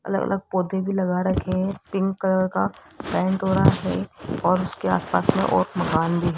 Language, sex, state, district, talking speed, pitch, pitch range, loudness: Hindi, female, Rajasthan, Jaipur, 205 wpm, 190 Hz, 175-190 Hz, -23 LUFS